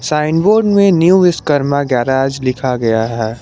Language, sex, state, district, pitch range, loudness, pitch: Hindi, male, Jharkhand, Garhwa, 125-170 Hz, -13 LUFS, 140 Hz